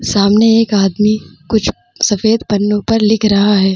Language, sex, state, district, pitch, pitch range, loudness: Hindi, female, Bihar, Vaishali, 210 Hz, 205-220 Hz, -13 LUFS